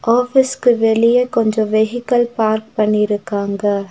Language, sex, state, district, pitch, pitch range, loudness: Tamil, female, Tamil Nadu, Nilgiris, 220 Hz, 210-240 Hz, -16 LUFS